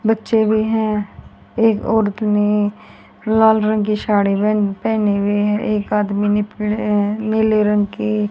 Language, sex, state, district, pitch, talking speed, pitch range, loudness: Hindi, female, Haryana, Rohtak, 210 Hz, 160 wpm, 205-220 Hz, -17 LUFS